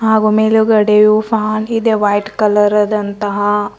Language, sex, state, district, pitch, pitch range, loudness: Kannada, female, Karnataka, Bidar, 215 Hz, 210-220 Hz, -13 LUFS